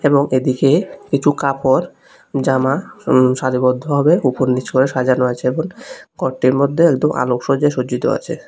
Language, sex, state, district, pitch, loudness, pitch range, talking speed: Bengali, male, Tripura, West Tripura, 135 Hz, -16 LUFS, 130-145 Hz, 125 wpm